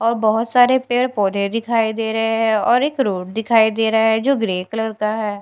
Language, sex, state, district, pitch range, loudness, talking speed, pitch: Hindi, female, Bihar, Katihar, 215-235 Hz, -18 LUFS, 235 wpm, 225 Hz